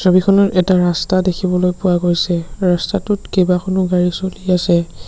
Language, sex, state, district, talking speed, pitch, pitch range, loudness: Assamese, male, Assam, Sonitpur, 130 wpm, 180 Hz, 175-185 Hz, -16 LUFS